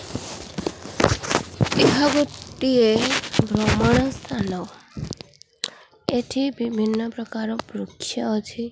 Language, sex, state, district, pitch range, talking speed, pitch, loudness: Odia, female, Odisha, Khordha, 225-265 Hz, 60 wpm, 235 Hz, -23 LUFS